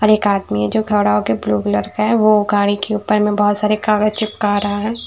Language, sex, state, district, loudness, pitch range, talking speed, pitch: Hindi, female, Bihar, Patna, -16 LUFS, 200-215 Hz, 275 wpm, 210 Hz